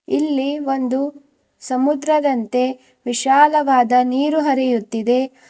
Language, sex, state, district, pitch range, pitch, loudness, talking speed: Kannada, female, Karnataka, Bidar, 250-285 Hz, 265 Hz, -18 LUFS, 65 wpm